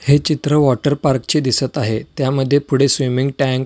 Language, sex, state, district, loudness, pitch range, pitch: Marathi, male, Maharashtra, Solapur, -16 LUFS, 130-145 Hz, 135 Hz